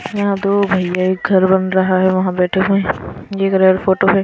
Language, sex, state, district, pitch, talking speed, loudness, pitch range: Hindi, female, Himachal Pradesh, Shimla, 190 Hz, 210 wpm, -15 LUFS, 185-195 Hz